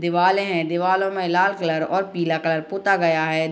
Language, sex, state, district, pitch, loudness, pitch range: Hindi, female, Bihar, Gopalganj, 175 Hz, -21 LUFS, 160-190 Hz